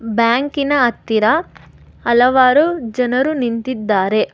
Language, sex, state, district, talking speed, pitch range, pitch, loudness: Kannada, female, Karnataka, Bangalore, 70 wpm, 230-280 Hz, 245 Hz, -15 LUFS